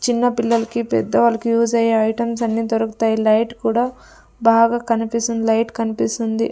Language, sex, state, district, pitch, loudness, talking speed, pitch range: Telugu, female, Andhra Pradesh, Sri Satya Sai, 230 Hz, -18 LUFS, 130 wpm, 225-235 Hz